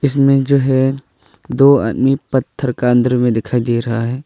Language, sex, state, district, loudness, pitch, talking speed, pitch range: Hindi, male, Arunachal Pradesh, Longding, -15 LUFS, 130 Hz, 185 wpm, 120-135 Hz